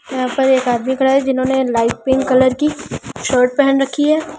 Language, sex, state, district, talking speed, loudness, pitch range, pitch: Hindi, female, Delhi, New Delhi, 205 wpm, -15 LUFS, 255-275 Hz, 265 Hz